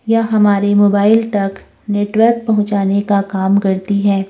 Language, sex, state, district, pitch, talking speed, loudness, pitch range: Hindi, female, Uttar Pradesh, Jyotiba Phule Nagar, 205 Hz, 140 wpm, -14 LUFS, 200-215 Hz